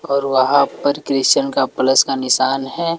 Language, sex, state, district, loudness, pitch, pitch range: Hindi, male, Bihar, West Champaran, -16 LUFS, 135 Hz, 130-140 Hz